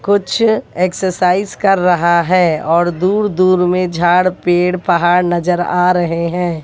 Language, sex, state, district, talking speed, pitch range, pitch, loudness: Hindi, female, Haryana, Jhajjar, 145 wpm, 175-185 Hz, 180 Hz, -14 LUFS